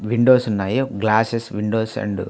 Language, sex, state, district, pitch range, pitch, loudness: Telugu, male, Andhra Pradesh, Visakhapatnam, 105-120 Hz, 110 Hz, -19 LUFS